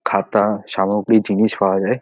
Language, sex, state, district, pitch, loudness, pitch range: Bengali, male, West Bengal, North 24 Parganas, 105 Hz, -17 LUFS, 100-110 Hz